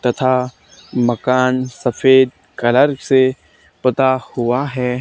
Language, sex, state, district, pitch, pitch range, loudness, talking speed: Hindi, male, Haryana, Charkhi Dadri, 130 Hz, 125-130 Hz, -16 LUFS, 95 wpm